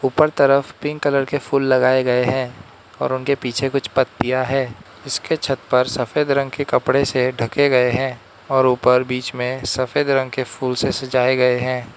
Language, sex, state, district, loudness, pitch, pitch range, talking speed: Hindi, male, Arunachal Pradesh, Lower Dibang Valley, -19 LUFS, 130 Hz, 125-140 Hz, 190 wpm